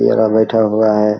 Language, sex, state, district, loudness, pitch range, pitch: Hindi, male, Bihar, Vaishali, -13 LUFS, 105-110 Hz, 110 Hz